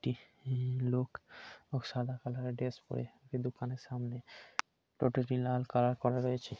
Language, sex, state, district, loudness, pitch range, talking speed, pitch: Bengali, male, West Bengal, Kolkata, -37 LUFS, 125-130 Hz, 135 wpm, 125 Hz